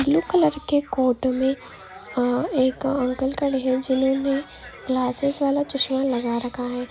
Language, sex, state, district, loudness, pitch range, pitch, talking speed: Hindi, female, Karnataka, Bijapur, -23 LUFS, 255-280 Hz, 265 Hz, 130 wpm